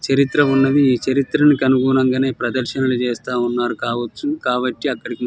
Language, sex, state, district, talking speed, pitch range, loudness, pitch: Telugu, male, Telangana, Nalgonda, 150 wpm, 120-135 Hz, -18 LUFS, 130 Hz